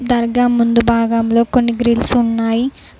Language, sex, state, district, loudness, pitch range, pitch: Telugu, female, Telangana, Mahabubabad, -14 LUFS, 230-245 Hz, 235 Hz